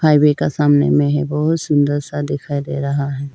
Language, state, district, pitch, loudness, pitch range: Hindi, Arunachal Pradesh, Lower Dibang Valley, 145 Hz, -17 LUFS, 140-150 Hz